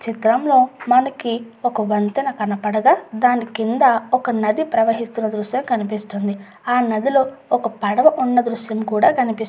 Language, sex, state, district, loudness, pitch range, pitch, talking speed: Telugu, female, Andhra Pradesh, Guntur, -18 LUFS, 215-255 Hz, 230 Hz, 140 wpm